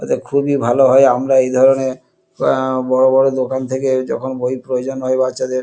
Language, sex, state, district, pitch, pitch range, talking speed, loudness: Bengali, male, West Bengal, Kolkata, 130 Hz, 130-135 Hz, 180 wpm, -15 LUFS